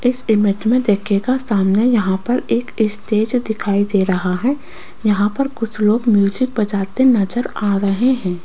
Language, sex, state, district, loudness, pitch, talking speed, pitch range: Hindi, female, Rajasthan, Jaipur, -17 LUFS, 215 Hz, 165 wpm, 200-245 Hz